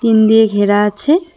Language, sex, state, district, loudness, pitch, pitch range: Bengali, female, West Bengal, Cooch Behar, -12 LUFS, 220 Hz, 205-260 Hz